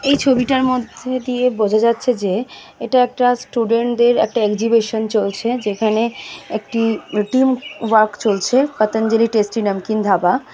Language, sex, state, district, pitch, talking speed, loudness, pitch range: Bengali, female, West Bengal, Jalpaiguri, 230 Hz, 130 wpm, -17 LUFS, 215-250 Hz